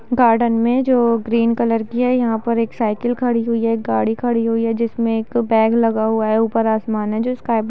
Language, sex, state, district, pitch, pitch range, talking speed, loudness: Hindi, female, Bihar, Gaya, 230 Hz, 225-235 Hz, 240 wpm, -18 LUFS